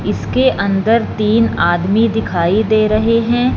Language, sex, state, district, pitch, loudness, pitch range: Hindi, female, Punjab, Fazilka, 220 Hz, -14 LUFS, 200-230 Hz